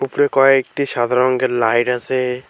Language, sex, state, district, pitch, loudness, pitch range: Bengali, male, West Bengal, Alipurduar, 130 Hz, -16 LUFS, 125-135 Hz